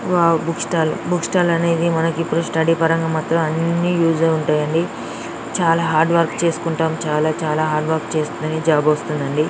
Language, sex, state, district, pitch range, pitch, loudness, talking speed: Telugu, female, Andhra Pradesh, Srikakulam, 155-165 Hz, 165 Hz, -18 LUFS, 160 wpm